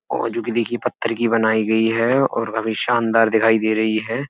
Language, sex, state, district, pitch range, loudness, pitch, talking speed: Hindi, male, Uttar Pradesh, Etah, 110-120 Hz, -19 LUFS, 115 Hz, 225 wpm